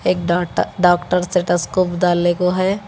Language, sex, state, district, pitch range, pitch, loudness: Hindi, female, Telangana, Hyderabad, 175-180 Hz, 180 Hz, -17 LUFS